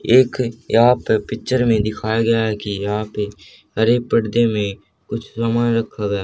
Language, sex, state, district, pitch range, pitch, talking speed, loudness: Hindi, male, Haryana, Rohtak, 105-115 Hz, 110 Hz, 185 wpm, -19 LUFS